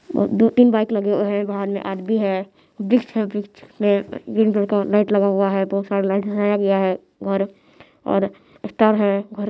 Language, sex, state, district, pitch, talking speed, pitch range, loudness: Hindi, female, Bihar, Madhepura, 205 Hz, 185 wpm, 195-210 Hz, -20 LUFS